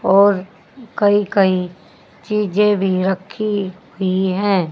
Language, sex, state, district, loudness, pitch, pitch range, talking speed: Hindi, female, Haryana, Jhajjar, -17 LUFS, 195 Hz, 185-205 Hz, 100 wpm